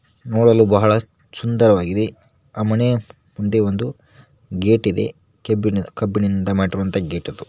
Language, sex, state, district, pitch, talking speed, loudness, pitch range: Kannada, male, Karnataka, Koppal, 110 Hz, 110 wpm, -19 LUFS, 100-115 Hz